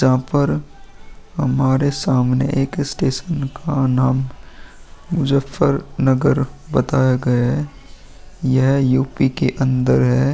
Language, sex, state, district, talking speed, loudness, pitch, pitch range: Hindi, male, Uttar Pradesh, Muzaffarnagar, 105 wpm, -18 LUFS, 135 Hz, 130-140 Hz